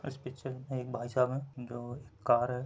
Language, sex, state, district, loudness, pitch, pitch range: Hindi, male, Chhattisgarh, Bilaspur, -35 LUFS, 125 Hz, 120-130 Hz